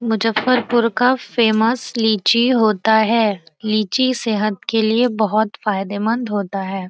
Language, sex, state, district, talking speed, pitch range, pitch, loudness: Hindi, female, Bihar, Saran, 120 wpm, 210-235 Hz, 220 Hz, -17 LUFS